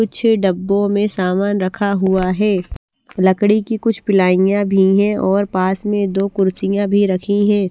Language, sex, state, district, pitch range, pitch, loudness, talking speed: Hindi, female, Bihar, West Champaran, 190-205 Hz, 200 Hz, -16 LUFS, 165 wpm